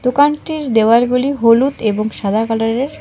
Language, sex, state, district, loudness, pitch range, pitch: Bengali, female, West Bengal, Alipurduar, -15 LUFS, 225-275 Hz, 235 Hz